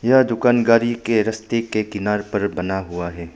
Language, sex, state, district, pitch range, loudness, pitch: Hindi, male, Arunachal Pradesh, Papum Pare, 100-115 Hz, -20 LUFS, 110 Hz